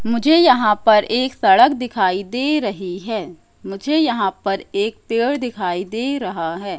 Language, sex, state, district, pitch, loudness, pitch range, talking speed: Hindi, female, Madhya Pradesh, Katni, 225 Hz, -18 LUFS, 195-260 Hz, 160 wpm